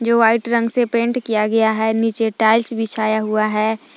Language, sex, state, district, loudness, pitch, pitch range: Hindi, female, Jharkhand, Palamu, -17 LUFS, 225 Hz, 220-235 Hz